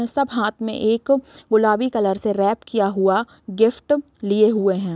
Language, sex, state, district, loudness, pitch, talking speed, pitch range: Hindi, female, Bihar, Sitamarhi, -20 LUFS, 220 Hz, 170 wpm, 200-235 Hz